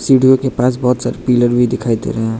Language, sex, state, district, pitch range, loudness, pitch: Hindi, male, Arunachal Pradesh, Lower Dibang Valley, 120-130 Hz, -14 LUFS, 125 Hz